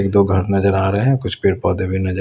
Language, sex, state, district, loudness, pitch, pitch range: Hindi, male, Bihar, West Champaran, -17 LUFS, 95 Hz, 95-100 Hz